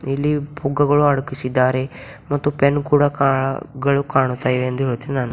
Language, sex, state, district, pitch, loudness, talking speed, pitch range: Kannada, female, Karnataka, Bidar, 140 Hz, -19 LUFS, 145 wpm, 130-145 Hz